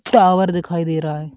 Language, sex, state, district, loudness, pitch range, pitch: Bhojpuri, male, Uttar Pradesh, Gorakhpur, -17 LUFS, 155-175 Hz, 170 Hz